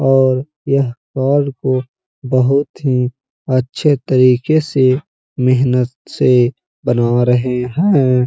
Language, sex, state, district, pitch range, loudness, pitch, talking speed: Hindi, male, Uttar Pradesh, Jalaun, 125-140 Hz, -15 LUFS, 130 Hz, 100 wpm